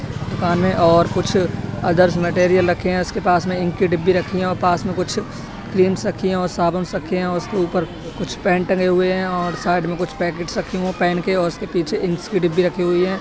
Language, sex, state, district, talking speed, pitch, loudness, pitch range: Hindi, male, Uttar Pradesh, Etah, 240 wpm, 180 Hz, -19 LUFS, 175-185 Hz